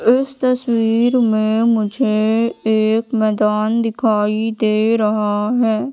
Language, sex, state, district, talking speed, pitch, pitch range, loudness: Hindi, female, Madhya Pradesh, Katni, 100 wpm, 225 Hz, 215-230 Hz, -16 LUFS